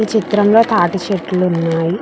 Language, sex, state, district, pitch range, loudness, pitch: Telugu, female, Andhra Pradesh, Krishna, 175-215 Hz, -14 LUFS, 190 Hz